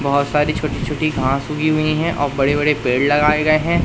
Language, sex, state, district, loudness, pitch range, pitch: Hindi, male, Madhya Pradesh, Katni, -17 LUFS, 140-155 Hz, 150 Hz